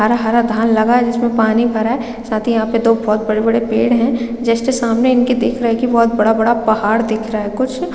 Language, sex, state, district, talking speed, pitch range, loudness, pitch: Hindi, female, Chhattisgarh, Raigarh, 285 wpm, 220-240 Hz, -15 LUFS, 230 Hz